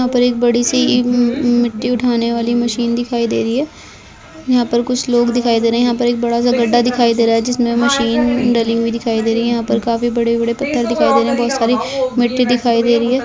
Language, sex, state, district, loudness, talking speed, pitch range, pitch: Hindi, female, Chhattisgarh, Bilaspur, -15 LUFS, 260 wpm, 235-245 Hz, 240 Hz